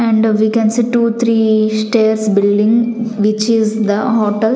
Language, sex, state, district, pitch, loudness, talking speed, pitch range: English, female, Chandigarh, Chandigarh, 220 Hz, -13 LUFS, 160 wpm, 215-230 Hz